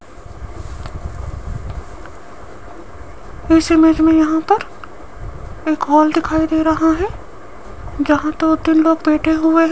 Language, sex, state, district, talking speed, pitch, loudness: Hindi, female, Rajasthan, Jaipur, 110 wpm, 310 Hz, -15 LUFS